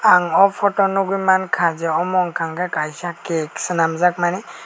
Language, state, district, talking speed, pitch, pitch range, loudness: Kokborok, Tripura, West Tripura, 165 wpm, 180 Hz, 165-195 Hz, -19 LUFS